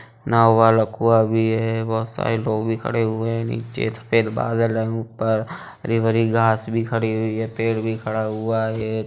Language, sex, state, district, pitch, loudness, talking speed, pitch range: Hindi, male, Uttar Pradesh, Budaun, 115 Hz, -21 LUFS, 185 wpm, 110-115 Hz